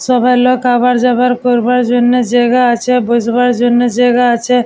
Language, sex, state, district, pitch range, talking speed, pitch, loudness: Bengali, female, West Bengal, Jalpaiguri, 245-250 Hz, 155 wpm, 245 Hz, -11 LUFS